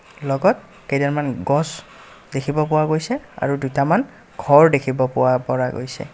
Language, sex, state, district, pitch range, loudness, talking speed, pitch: Assamese, male, Assam, Kamrup Metropolitan, 135-165 Hz, -19 LUFS, 125 wpm, 145 Hz